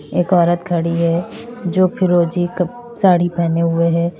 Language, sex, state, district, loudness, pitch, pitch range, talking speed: Hindi, female, Uttar Pradesh, Lalitpur, -16 LUFS, 175 Hz, 170-185 Hz, 170 wpm